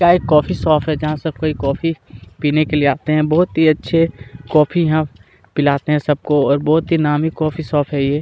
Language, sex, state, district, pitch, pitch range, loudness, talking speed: Hindi, male, Chhattisgarh, Kabirdham, 150 Hz, 145-160 Hz, -16 LUFS, 210 wpm